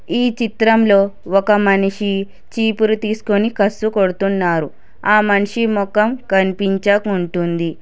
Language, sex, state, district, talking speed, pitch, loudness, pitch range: Telugu, female, Telangana, Hyderabad, 90 wpm, 200 Hz, -16 LUFS, 195-220 Hz